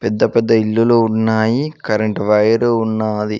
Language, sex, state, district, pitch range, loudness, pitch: Telugu, male, Telangana, Mahabubabad, 110-115 Hz, -15 LUFS, 110 Hz